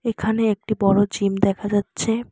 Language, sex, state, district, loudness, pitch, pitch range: Bengali, female, West Bengal, Alipurduar, -21 LUFS, 205 Hz, 200-225 Hz